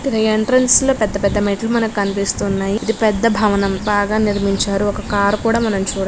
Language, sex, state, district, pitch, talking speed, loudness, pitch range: Telugu, female, Andhra Pradesh, Guntur, 205 Hz, 180 wpm, -16 LUFS, 200-225 Hz